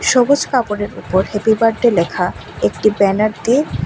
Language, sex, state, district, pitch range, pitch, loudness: Bengali, female, Tripura, West Tripura, 195-240 Hz, 215 Hz, -16 LUFS